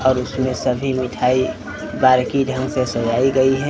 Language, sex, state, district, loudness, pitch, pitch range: Hindi, male, Bihar, Kaimur, -18 LUFS, 130 Hz, 125-135 Hz